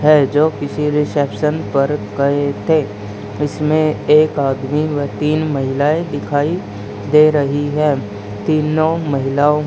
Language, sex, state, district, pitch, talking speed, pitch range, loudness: Hindi, male, Haryana, Charkhi Dadri, 145 Hz, 120 wpm, 140-150 Hz, -16 LUFS